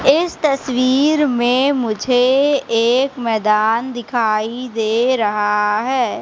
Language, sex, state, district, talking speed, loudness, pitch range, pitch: Hindi, female, Madhya Pradesh, Katni, 95 wpm, -16 LUFS, 220-265 Hz, 245 Hz